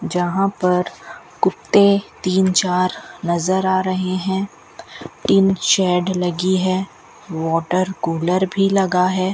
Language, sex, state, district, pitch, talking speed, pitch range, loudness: Hindi, female, Rajasthan, Bikaner, 185 Hz, 115 wpm, 180-190 Hz, -18 LUFS